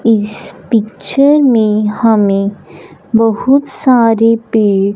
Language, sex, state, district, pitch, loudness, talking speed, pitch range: Hindi, female, Punjab, Fazilka, 220 Hz, -11 LUFS, 85 wpm, 200-230 Hz